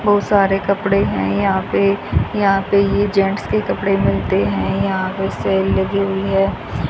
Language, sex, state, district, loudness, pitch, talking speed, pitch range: Hindi, female, Haryana, Jhajjar, -17 LUFS, 195 Hz, 175 wpm, 195-200 Hz